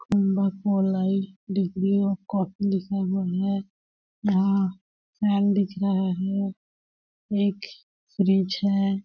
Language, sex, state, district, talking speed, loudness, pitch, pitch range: Hindi, female, Chhattisgarh, Balrampur, 75 wpm, -25 LUFS, 195 Hz, 190-200 Hz